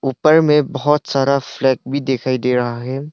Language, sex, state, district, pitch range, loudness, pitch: Hindi, male, Arunachal Pradesh, Longding, 130-145 Hz, -17 LUFS, 135 Hz